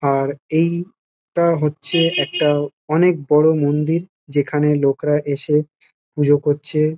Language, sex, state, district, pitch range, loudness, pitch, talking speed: Bengali, male, West Bengal, Kolkata, 145-165 Hz, -18 LUFS, 150 Hz, 110 wpm